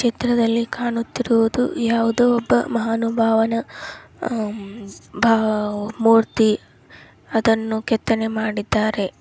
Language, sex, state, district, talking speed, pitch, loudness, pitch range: Kannada, female, Karnataka, Raichur, 70 wpm, 225 Hz, -20 LUFS, 220-230 Hz